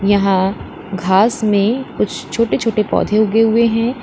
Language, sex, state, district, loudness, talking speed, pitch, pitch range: Hindi, female, Uttar Pradesh, Lalitpur, -15 LUFS, 150 wpm, 215 Hz, 200-230 Hz